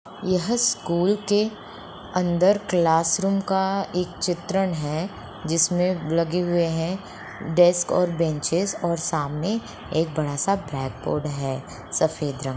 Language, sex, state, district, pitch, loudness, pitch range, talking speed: Hindi, female, Jharkhand, Sahebganj, 175 Hz, -23 LUFS, 160-190 Hz, 130 wpm